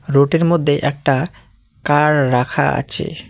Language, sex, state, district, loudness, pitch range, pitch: Bengali, male, West Bengal, Cooch Behar, -16 LUFS, 125-150 Hz, 140 Hz